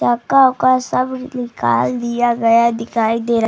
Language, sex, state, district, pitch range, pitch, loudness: Hindi, female, Bihar, Bhagalpur, 230-255 Hz, 235 Hz, -16 LUFS